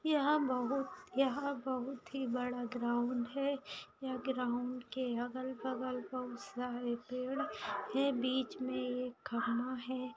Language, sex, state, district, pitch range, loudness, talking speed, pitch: Hindi, female, Maharashtra, Aurangabad, 245-265 Hz, -38 LUFS, 125 wpm, 255 Hz